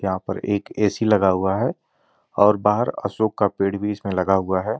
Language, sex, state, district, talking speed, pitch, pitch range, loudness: Hindi, male, Uttar Pradesh, Gorakhpur, 225 wpm, 100 Hz, 95-105 Hz, -21 LUFS